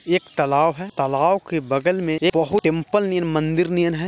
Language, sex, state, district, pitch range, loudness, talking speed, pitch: Hindi, male, Bihar, Jahanabad, 160-180 Hz, -20 LUFS, 160 wpm, 170 Hz